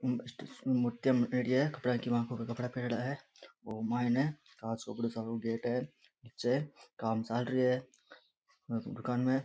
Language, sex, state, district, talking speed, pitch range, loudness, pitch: Rajasthani, male, Rajasthan, Nagaur, 95 wpm, 120-130 Hz, -35 LUFS, 125 Hz